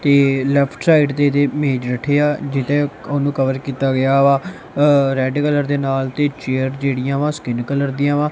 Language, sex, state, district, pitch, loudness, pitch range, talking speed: Punjabi, male, Punjab, Kapurthala, 140 Hz, -17 LUFS, 135-145 Hz, 175 wpm